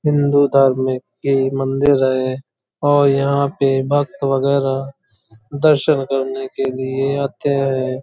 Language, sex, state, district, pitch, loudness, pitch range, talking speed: Hindi, male, Uttar Pradesh, Hamirpur, 135 Hz, -17 LUFS, 130-140 Hz, 110 wpm